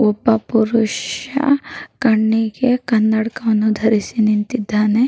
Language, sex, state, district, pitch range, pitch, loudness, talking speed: Kannada, female, Karnataka, Raichur, 215-240 Hz, 225 Hz, -17 LUFS, 70 wpm